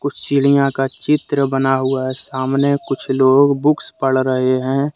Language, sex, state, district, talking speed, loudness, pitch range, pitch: Hindi, male, Jharkhand, Deoghar, 155 wpm, -16 LUFS, 130-140 Hz, 135 Hz